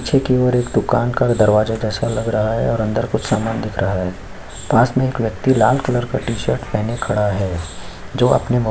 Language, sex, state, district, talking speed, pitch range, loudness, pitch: Hindi, male, Chhattisgarh, Korba, 225 wpm, 105-125 Hz, -18 LUFS, 115 Hz